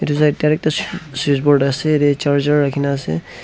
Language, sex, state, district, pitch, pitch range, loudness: Nagamese, male, Nagaland, Dimapur, 145 Hz, 140-150 Hz, -17 LUFS